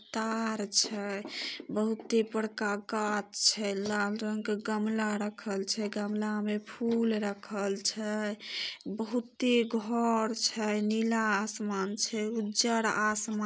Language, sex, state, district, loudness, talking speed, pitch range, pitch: Maithili, female, Bihar, Samastipur, -31 LUFS, 115 wpm, 210-225 Hz, 215 Hz